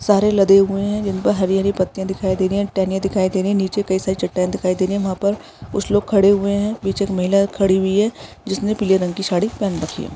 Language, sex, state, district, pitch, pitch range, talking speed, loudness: Hindi, female, Jharkhand, Sahebganj, 195 Hz, 190-200 Hz, 270 wpm, -18 LUFS